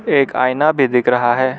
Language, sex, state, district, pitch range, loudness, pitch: Hindi, male, Arunachal Pradesh, Lower Dibang Valley, 125-135 Hz, -15 LUFS, 130 Hz